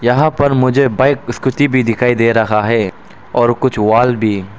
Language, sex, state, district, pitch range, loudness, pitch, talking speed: Hindi, male, Arunachal Pradesh, Papum Pare, 115-130 Hz, -13 LUFS, 120 Hz, 185 wpm